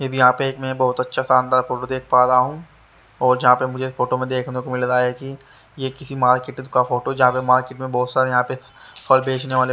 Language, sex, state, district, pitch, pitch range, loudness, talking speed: Hindi, male, Haryana, Rohtak, 130 Hz, 125-130 Hz, -19 LUFS, 250 wpm